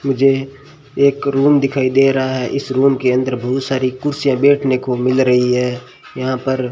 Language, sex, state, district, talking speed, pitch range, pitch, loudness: Hindi, male, Rajasthan, Bikaner, 195 wpm, 130-140 Hz, 130 Hz, -16 LUFS